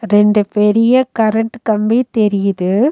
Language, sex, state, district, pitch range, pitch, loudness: Tamil, female, Tamil Nadu, Nilgiris, 210-230 Hz, 215 Hz, -14 LUFS